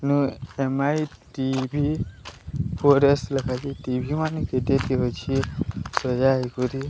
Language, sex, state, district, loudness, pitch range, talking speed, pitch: Odia, male, Odisha, Sambalpur, -24 LUFS, 125-140 Hz, 95 wpm, 135 Hz